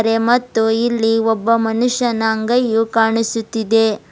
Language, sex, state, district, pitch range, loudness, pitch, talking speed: Kannada, female, Karnataka, Bidar, 225-235 Hz, -16 LUFS, 225 Hz, 85 wpm